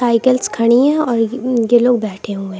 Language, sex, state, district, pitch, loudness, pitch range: Hindi, female, Uttar Pradesh, Lucknow, 240 Hz, -15 LUFS, 225-250 Hz